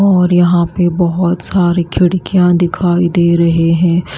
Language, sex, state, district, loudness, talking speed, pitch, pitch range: Hindi, female, Himachal Pradesh, Shimla, -12 LUFS, 145 wpm, 175 Hz, 170-180 Hz